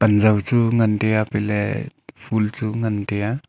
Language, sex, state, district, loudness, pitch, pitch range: Wancho, male, Arunachal Pradesh, Longding, -20 LUFS, 110 Hz, 105-115 Hz